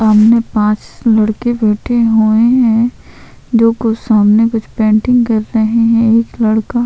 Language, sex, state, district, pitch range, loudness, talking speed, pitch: Hindi, female, Chhattisgarh, Sukma, 215-230 Hz, -12 LUFS, 140 wpm, 225 Hz